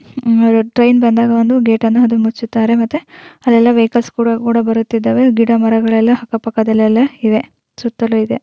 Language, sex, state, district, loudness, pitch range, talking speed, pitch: Kannada, female, Karnataka, Shimoga, -12 LUFS, 225-235 Hz, 100 wpm, 230 Hz